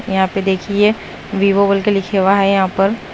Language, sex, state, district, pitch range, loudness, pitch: Hindi, female, Punjab, Kapurthala, 195-200 Hz, -15 LUFS, 195 Hz